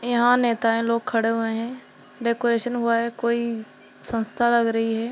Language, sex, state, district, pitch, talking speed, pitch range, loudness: Hindi, female, Jharkhand, Jamtara, 235 Hz, 165 wpm, 225-235 Hz, -22 LUFS